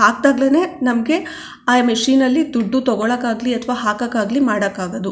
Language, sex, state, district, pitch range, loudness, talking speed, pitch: Kannada, female, Karnataka, Chamarajanagar, 225-270 Hz, -17 LUFS, 115 wpm, 245 Hz